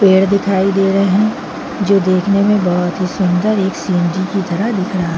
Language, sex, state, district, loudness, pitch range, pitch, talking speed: Hindi, female, Chhattisgarh, Bilaspur, -15 LUFS, 185-200 Hz, 195 Hz, 185 wpm